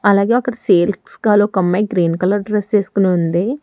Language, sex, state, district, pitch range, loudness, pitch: Telugu, female, Telangana, Hyderabad, 185-210 Hz, -16 LUFS, 200 Hz